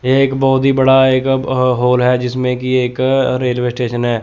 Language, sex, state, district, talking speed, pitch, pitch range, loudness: Hindi, male, Chandigarh, Chandigarh, 200 wpm, 130 Hz, 125-130 Hz, -14 LUFS